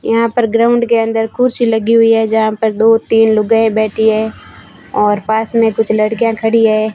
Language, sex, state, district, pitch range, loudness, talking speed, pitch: Hindi, female, Rajasthan, Barmer, 220-230 Hz, -12 LUFS, 200 wpm, 225 Hz